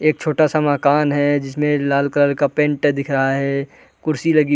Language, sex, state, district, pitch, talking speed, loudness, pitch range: Hindi, male, Chhattisgarh, Bilaspur, 145 Hz, 210 wpm, -18 LUFS, 140-150 Hz